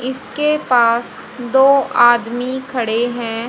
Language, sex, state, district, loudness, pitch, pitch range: Hindi, female, Haryana, Jhajjar, -15 LUFS, 245 Hz, 235-265 Hz